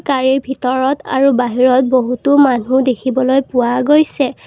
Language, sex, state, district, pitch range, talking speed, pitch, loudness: Assamese, female, Assam, Kamrup Metropolitan, 255-275 Hz, 120 wpm, 260 Hz, -14 LUFS